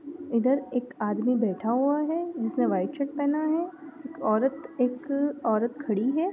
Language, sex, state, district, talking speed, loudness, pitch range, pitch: Hindi, female, Maharashtra, Nagpur, 160 wpm, -27 LUFS, 240-300 Hz, 275 Hz